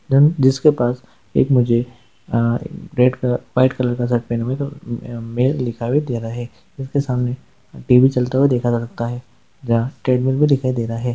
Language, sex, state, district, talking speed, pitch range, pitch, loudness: Hindi, male, West Bengal, Malda, 140 wpm, 120-130 Hz, 125 Hz, -19 LUFS